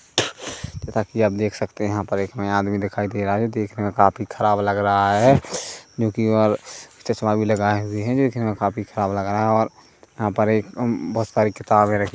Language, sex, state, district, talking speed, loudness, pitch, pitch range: Hindi, male, Chhattisgarh, Korba, 250 wpm, -21 LUFS, 105 Hz, 100-110 Hz